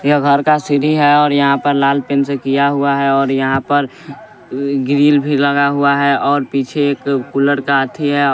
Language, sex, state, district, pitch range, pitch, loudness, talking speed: Hindi, male, Bihar, West Champaran, 140-145 Hz, 140 Hz, -14 LUFS, 215 wpm